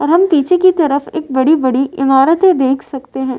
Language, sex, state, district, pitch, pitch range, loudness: Hindi, female, Uttar Pradesh, Varanasi, 280 Hz, 265-330 Hz, -12 LUFS